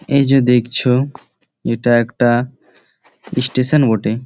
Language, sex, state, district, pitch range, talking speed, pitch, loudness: Bengali, male, West Bengal, Malda, 120-135 Hz, 110 wpm, 125 Hz, -15 LUFS